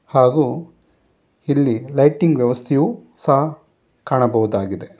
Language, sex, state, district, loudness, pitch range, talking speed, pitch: Kannada, male, Karnataka, Bangalore, -18 LUFS, 125-155 Hz, 70 wpm, 140 Hz